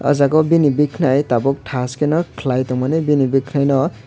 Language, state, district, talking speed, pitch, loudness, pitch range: Kokborok, Tripura, West Tripura, 205 wpm, 140 Hz, -17 LUFS, 130-150 Hz